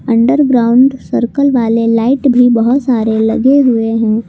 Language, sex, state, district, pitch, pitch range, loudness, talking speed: Hindi, female, Jharkhand, Palamu, 240 Hz, 230-265 Hz, -11 LUFS, 140 wpm